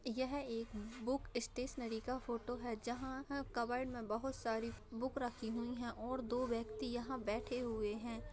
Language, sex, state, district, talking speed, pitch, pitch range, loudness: Hindi, female, Bihar, Vaishali, 175 wpm, 240 Hz, 230-255 Hz, -43 LUFS